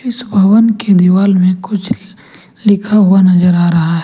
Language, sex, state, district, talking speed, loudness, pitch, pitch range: Hindi, male, Jharkhand, Ranchi, 180 wpm, -10 LUFS, 195 Hz, 180-215 Hz